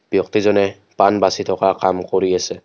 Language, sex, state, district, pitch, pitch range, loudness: Assamese, male, Assam, Kamrup Metropolitan, 95 Hz, 95-100 Hz, -17 LUFS